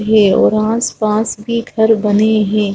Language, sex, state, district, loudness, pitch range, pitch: Hindi, female, Chhattisgarh, Rajnandgaon, -13 LUFS, 210-225 Hz, 215 Hz